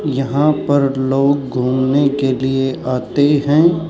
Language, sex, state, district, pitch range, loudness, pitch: Hindi, male, Rajasthan, Jaipur, 130-145 Hz, -15 LUFS, 140 Hz